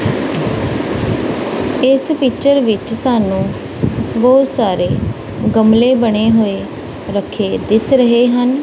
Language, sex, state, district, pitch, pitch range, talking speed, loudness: Punjabi, female, Punjab, Kapurthala, 225 Hz, 190-255 Hz, 90 wpm, -14 LUFS